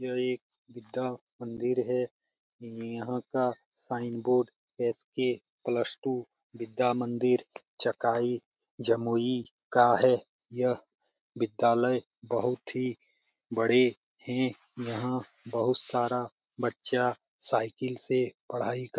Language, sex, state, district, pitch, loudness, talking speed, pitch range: Hindi, male, Bihar, Jamui, 125 Hz, -30 LUFS, 105 wpm, 120-125 Hz